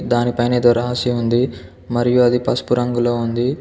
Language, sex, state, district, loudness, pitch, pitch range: Telugu, male, Telangana, Komaram Bheem, -17 LUFS, 120 Hz, 120-125 Hz